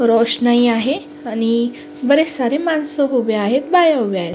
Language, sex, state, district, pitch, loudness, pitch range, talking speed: Marathi, female, Maharashtra, Sindhudurg, 250 Hz, -16 LUFS, 230-295 Hz, 150 wpm